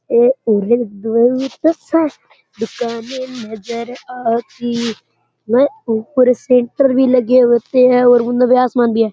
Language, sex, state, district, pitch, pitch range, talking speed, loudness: Rajasthani, male, Rajasthan, Churu, 245 Hz, 230-255 Hz, 120 wpm, -15 LUFS